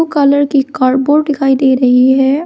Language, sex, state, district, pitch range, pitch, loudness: Hindi, female, Arunachal Pradesh, Lower Dibang Valley, 265-290 Hz, 275 Hz, -11 LUFS